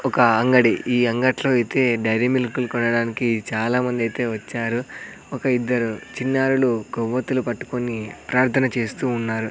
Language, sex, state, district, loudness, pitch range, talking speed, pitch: Telugu, male, Andhra Pradesh, Sri Satya Sai, -21 LUFS, 115-130 Hz, 120 wpm, 120 Hz